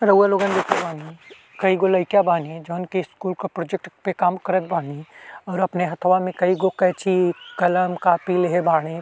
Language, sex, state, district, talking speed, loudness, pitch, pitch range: Bhojpuri, male, Uttar Pradesh, Ghazipur, 195 wpm, -21 LUFS, 180 Hz, 175-190 Hz